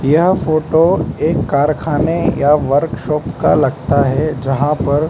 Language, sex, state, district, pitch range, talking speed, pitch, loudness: Hindi, male, Mizoram, Aizawl, 140-160 Hz, 140 wpm, 150 Hz, -15 LUFS